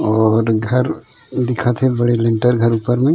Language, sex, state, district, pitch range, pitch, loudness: Chhattisgarhi, male, Chhattisgarh, Raigarh, 115-125 Hz, 120 Hz, -16 LUFS